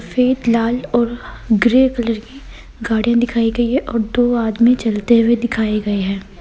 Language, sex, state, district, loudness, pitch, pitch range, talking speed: Hindi, female, Uttar Pradesh, Etah, -16 LUFS, 235 Hz, 220-245 Hz, 170 wpm